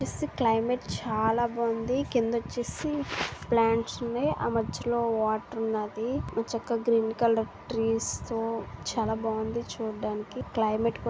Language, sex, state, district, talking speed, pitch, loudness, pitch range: Telugu, female, Andhra Pradesh, Visakhapatnam, 115 wpm, 230 Hz, -29 LUFS, 225-235 Hz